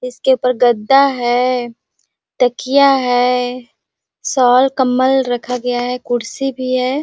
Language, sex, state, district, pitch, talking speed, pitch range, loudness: Hindi, female, Chhattisgarh, Sarguja, 250 Hz, 120 wpm, 245-260 Hz, -15 LUFS